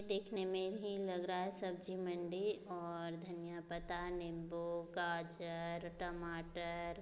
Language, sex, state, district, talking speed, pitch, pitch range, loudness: Hindi, female, Bihar, Muzaffarpur, 130 wpm, 175 Hz, 170-185 Hz, -44 LUFS